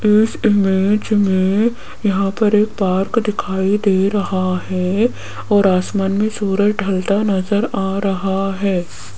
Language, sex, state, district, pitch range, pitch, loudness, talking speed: Hindi, female, Rajasthan, Jaipur, 190-210 Hz, 195 Hz, -17 LUFS, 130 wpm